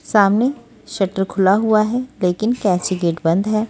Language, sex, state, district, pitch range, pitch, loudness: Hindi, female, Maharashtra, Washim, 185-225 Hz, 205 Hz, -18 LUFS